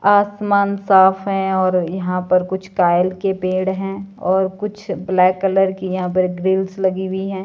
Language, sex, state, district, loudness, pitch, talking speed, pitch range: Hindi, female, Himachal Pradesh, Shimla, -18 LUFS, 190 Hz, 175 wpm, 185-195 Hz